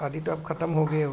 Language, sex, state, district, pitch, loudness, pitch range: Hindi, male, Uttar Pradesh, Hamirpur, 155 Hz, -28 LUFS, 150-160 Hz